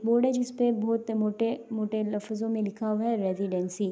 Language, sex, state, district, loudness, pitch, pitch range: Urdu, female, Andhra Pradesh, Anantapur, -29 LUFS, 220 Hz, 210-230 Hz